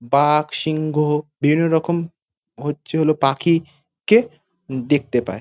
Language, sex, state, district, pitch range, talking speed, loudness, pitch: Bengali, male, West Bengal, North 24 Parganas, 145-165 Hz, 110 wpm, -19 LUFS, 150 Hz